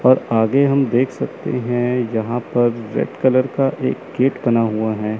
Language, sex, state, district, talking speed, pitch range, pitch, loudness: Hindi, male, Chandigarh, Chandigarh, 185 wpm, 115-130 Hz, 120 Hz, -18 LUFS